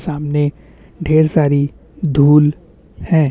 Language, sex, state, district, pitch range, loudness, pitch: Hindi, male, Chhattisgarh, Bastar, 145-155 Hz, -15 LUFS, 150 Hz